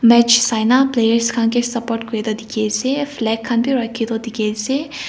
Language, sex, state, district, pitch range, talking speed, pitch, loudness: Nagamese, female, Nagaland, Kohima, 225-240 Hz, 105 wpm, 235 Hz, -17 LUFS